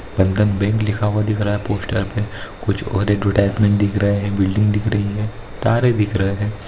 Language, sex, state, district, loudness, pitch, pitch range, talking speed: Hindi, male, Maharashtra, Nagpur, -18 LUFS, 105 Hz, 100-105 Hz, 190 wpm